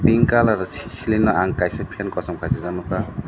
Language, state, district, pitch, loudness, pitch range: Kokborok, Tripura, Dhalai, 95 Hz, -21 LUFS, 90-110 Hz